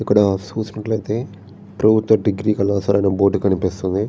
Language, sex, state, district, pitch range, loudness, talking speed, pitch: Telugu, male, Andhra Pradesh, Srikakulam, 100-110 Hz, -18 LUFS, 115 wpm, 100 Hz